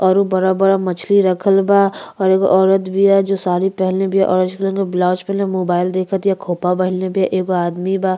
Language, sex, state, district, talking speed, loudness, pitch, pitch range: Bhojpuri, female, Uttar Pradesh, Ghazipur, 200 wpm, -16 LUFS, 190 Hz, 185-195 Hz